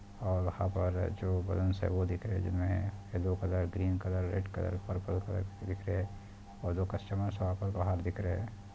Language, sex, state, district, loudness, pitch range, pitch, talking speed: Hindi, male, Chhattisgarh, Bastar, -35 LUFS, 90-100 Hz, 95 Hz, 225 wpm